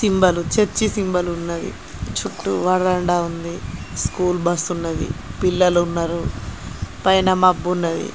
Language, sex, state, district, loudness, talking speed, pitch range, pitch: Telugu, female, Telangana, Nalgonda, -20 LUFS, 110 wpm, 170-185 Hz, 180 Hz